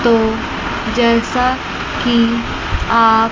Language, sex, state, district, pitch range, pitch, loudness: Hindi, female, Chandigarh, Chandigarh, 230-235 Hz, 230 Hz, -15 LUFS